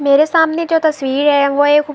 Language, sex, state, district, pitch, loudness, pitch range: Urdu, female, Andhra Pradesh, Anantapur, 295 Hz, -13 LUFS, 280-320 Hz